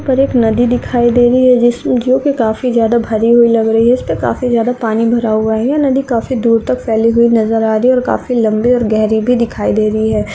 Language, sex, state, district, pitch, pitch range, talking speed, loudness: Hindi, male, Chhattisgarh, Balrampur, 235 Hz, 225-245 Hz, 245 wpm, -12 LUFS